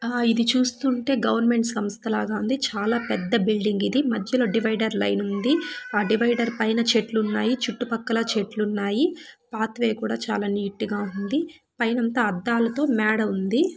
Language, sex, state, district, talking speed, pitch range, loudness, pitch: Telugu, female, Andhra Pradesh, Chittoor, 155 wpm, 215-245 Hz, -24 LUFS, 230 Hz